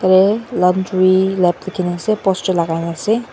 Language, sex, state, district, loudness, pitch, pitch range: Nagamese, female, Nagaland, Dimapur, -16 LUFS, 185 Hz, 180-195 Hz